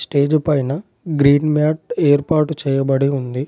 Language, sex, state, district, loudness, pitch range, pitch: Telugu, male, Telangana, Adilabad, -17 LUFS, 140-155 Hz, 145 Hz